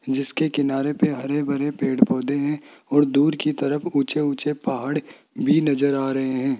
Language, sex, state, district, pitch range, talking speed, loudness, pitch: Hindi, male, Rajasthan, Jaipur, 135-150 Hz, 180 wpm, -22 LUFS, 140 Hz